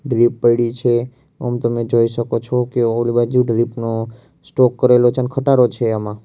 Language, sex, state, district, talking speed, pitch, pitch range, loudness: Gujarati, male, Gujarat, Valsad, 200 wpm, 120 Hz, 115-125 Hz, -17 LUFS